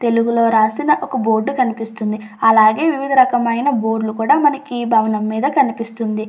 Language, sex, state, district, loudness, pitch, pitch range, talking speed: Telugu, female, Andhra Pradesh, Chittoor, -16 LUFS, 230 Hz, 220-265 Hz, 150 wpm